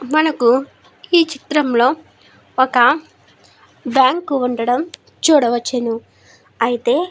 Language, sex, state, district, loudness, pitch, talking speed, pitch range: Telugu, female, Andhra Pradesh, Srikakulam, -16 LUFS, 260 Hz, 75 wpm, 245-305 Hz